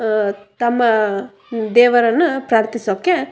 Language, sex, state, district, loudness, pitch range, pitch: Kannada, female, Karnataka, Raichur, -16 LUFS, 215-245 Hz, 230 Hz